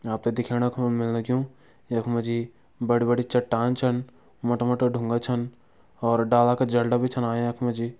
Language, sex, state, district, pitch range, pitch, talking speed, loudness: Garhwali, male, Uttarakhand, Uttarkashi, 115-125 Hz, 120 Hz, 205 wpm, -25 LUFS